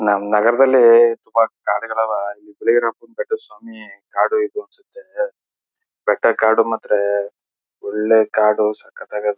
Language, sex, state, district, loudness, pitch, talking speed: Kannada, male, Karnataka, Chamarajanagar, -17 LUFS, 115 Hz, 110 wpm